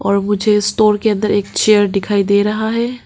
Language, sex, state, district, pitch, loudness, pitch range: Hindi, female, Arunachal Pradesh, Papum Pare, 210 Hz, -14 LUFS, 200-215 Hz